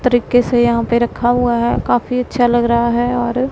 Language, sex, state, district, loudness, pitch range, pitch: Hindi, female, Punjab, Pathankot, -15 LUFS, 235-245 Hz, 240 Hz